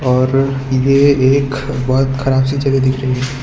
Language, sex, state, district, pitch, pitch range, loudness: Hindi, male, Gujarat, Valsad, 135 Hz, 130-135 Hz, -14 LUFS